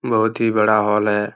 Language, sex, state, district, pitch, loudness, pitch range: Hindi, male, Uttar Pradesh, Hamirpur, 110 Hz, -17 LUFS, 105-110 Hz